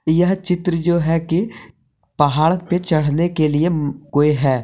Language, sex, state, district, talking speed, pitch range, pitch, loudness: Hindi, male, Jharkhand, Deoghar, 140 wpm, 145-175 Hz, 160 Hz, -18 LUFS